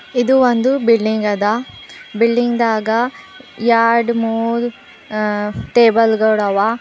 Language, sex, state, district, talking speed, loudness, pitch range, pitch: Kannada, female, Karnataka, Bidar, 95 wpm, -15 LUFS, 220-240 Hz, 230 Hz